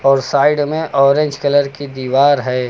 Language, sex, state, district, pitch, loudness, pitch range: Hindi, male, Uttar Pradesh, Lucknow, 140 Hz, -14 LUFS, 135-145 Hz